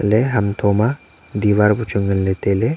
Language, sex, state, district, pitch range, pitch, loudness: Wancho, male, Arunachal Pradesh, Longding, 100-110 Hz, 105 Hz, -18 LUFS